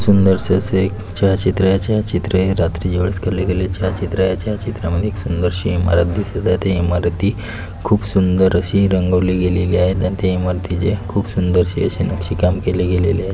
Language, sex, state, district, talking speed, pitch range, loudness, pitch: Marathi, male, Maharashtra, Pune, 175 wpm, 90-100 Hz, -17 LUFS, 95 Hz